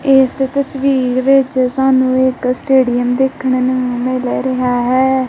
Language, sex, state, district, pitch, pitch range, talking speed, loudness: Punjabi, female, Punjab, Kapurthala, 260 Hz, 255-265 Hz, 125 wpm, -14 LUFS